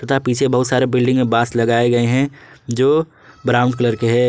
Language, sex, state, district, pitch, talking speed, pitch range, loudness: Hindi, male, Jharkhand, Ranchi, 125 Hz, 210 wpm, 120-130 Hz, -16 LUFS